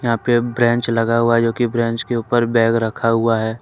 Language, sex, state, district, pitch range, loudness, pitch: Hindi, male, Jharkhand, Ranchi, 115-120 Hz, -17 LUFS, 115 Hz